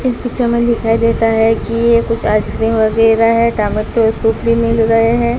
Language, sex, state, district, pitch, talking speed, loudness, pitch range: Hindi, female, Gujarat, Gandhinagar, 230 Hz, 200 wpm, -13 LUFS, 225-235 Hz